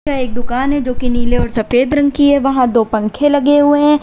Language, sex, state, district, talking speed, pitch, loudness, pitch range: Hindi, female, Uttar Pradesh, Lalitpur, 270 wpm, 265 Hz, -14 LUFS, 245-290 Hz